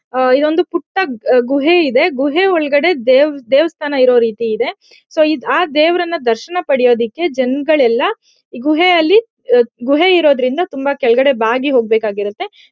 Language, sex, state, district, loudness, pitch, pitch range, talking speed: Kannada, female, Karnataka, Chamarajanagar, -13 LUFS, 295 Hz, 255-355 Hz, 135 wpm